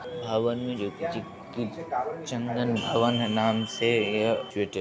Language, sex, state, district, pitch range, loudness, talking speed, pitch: Hindi, male, Bihar, Begusarai, 110-120 Hz, -28 LUFS, 110 wpm, 115 Hz